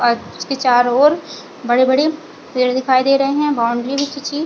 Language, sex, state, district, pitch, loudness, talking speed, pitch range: Hindi, female, Chhattisgarh, Bilaspur, 275 Hz, -16 LUFS, 175 wpm, 250-295 Hz